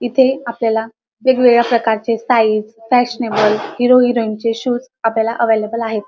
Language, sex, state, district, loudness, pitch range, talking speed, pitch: Marathi, female, Maharashtra, Dhule, -15 LUFS, 225-245 Hz, 130 wpm, 230 Hz